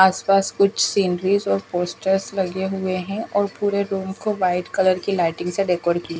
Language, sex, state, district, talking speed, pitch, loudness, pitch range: Hindi, female, Himachal Pradesh, Shimla, 185 wpm, 190 Hz, -21 LUFS, 180-200 Hz